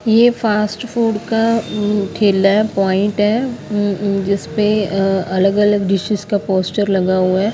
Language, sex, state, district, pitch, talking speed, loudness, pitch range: Hindi, female, Haryana, Rohtak, 205 Hz, 165 wpm, -16 LUFS, 195-215 Hz